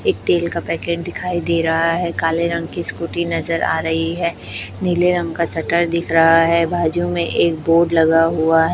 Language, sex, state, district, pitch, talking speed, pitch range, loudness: Hindi, male, Chhattisgarh, Raipur, 170 Hz, 200 wpm, 165-170 Hz, -17 LUFS